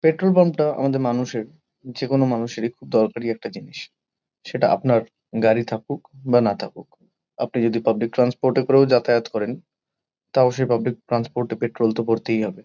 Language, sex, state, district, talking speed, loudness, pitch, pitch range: Bengali, male, West Bengal, Kolkata, 165 wpm, -21 LUFS, 120 Hz, 115-130 Hz